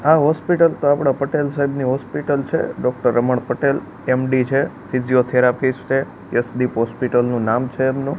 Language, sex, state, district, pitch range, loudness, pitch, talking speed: Gujarati, male, Gujarat, Gandhinagar, 125-140 Hz, -19 LUFS, 130 Hz, 155 wpm